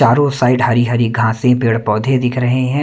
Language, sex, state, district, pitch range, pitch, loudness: Hindi, male, Himachal Pradesh, Shimla, 115-130 Hz, 125 Hz, -14 LUFS